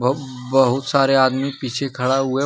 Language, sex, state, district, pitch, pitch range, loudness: Hindi, male, Jharkhand, Deoghar, 135 Hz, 130-135 Hz, -19 LUFS